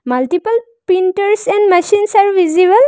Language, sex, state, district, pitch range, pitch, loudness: English, female, Arunachal Pradesh, Lower Dibang Valley, 360-425 Hz, 395 Hz, -13 LUFS